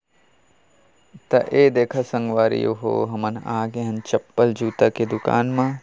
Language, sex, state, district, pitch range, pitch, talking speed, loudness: Hindi, male, Chhattisgarh, Kabirdham, 110-120 Hz, 115 Hz, 155 wpm, -21 LUFS